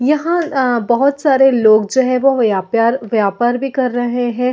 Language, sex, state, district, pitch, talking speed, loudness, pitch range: Hindi, female, Chhattisgarh, Raigarh, 250 Hz, 185 wpm, -14 LUFS, 235-270 Hz